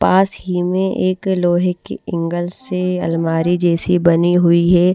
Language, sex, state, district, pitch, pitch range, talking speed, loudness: Hindi, female, Maharashtra, Mumbai Suburban, 175 Hz, 170-185 Hz, 170 wpm, -16 LUFS